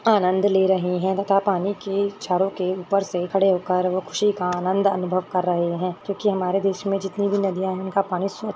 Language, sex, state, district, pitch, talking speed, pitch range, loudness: Hindi, female, Rajasthan, Churu, 190 Hz, 230 wpm, 185-200 Hz, -22 LUFS